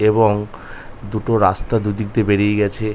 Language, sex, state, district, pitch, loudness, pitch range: Bengali, male, West Bengal, North 24 Parganas, 105 Hz, -18 LUFS, 105-110 Hz